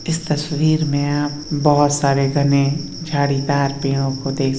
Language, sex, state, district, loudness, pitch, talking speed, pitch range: Hindi, male, Uttar Pradesh, Hamirpur, -18 LUFS, 145 Hz, 130 wpm, 140-150 Hz